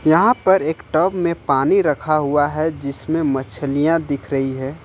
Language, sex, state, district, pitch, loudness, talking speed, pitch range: Hindi, male, Jharkhand, Ranchi, 155 Hz, -18 LUFS, 175 wpm, 140-165 Hz